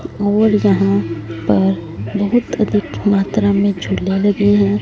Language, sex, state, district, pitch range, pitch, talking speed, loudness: Hindi, female, Punjab, Fazilka, 190-205 Hz, 200 Hz, 125 wpm, -16 LUFS